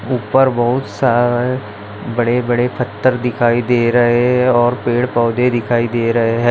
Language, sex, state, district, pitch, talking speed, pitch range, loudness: Hindi, male, Maharashtra, Chandrapur, 120 Hz, 140 wpm, 120-125 Hz, -15 LUFS